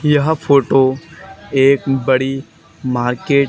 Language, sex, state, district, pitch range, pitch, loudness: Hindi, male, Haryana, Charkhi Dadri, 130-140 Hz, 135 Hz, -15 LUFS